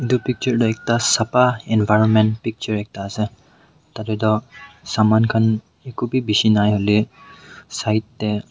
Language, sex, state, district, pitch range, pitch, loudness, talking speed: Nagamese, male, Nagaland, Dimapur, 105-120 Hz, 110 Hz, -19 LUFS, 125 wpm